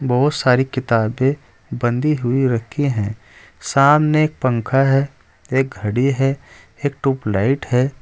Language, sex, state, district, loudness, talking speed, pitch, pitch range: Hindi, male, Uttar Pradesh, Saharanpur, -18 LUFS, 125 wpm, 130 Hz, 120-140 Hz